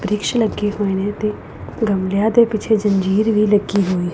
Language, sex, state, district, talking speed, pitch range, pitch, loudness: Punjabi, female, Punjab, Pathankot, 160 wpm, 200-215 Hz, 205 Hz, -17 LUFS